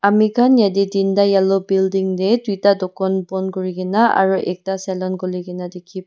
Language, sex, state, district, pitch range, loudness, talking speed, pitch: Nagamese, female, Nagaland, Dimapur, 185-200 Hz, -17 LUFS, 150 wpm, 190 Hz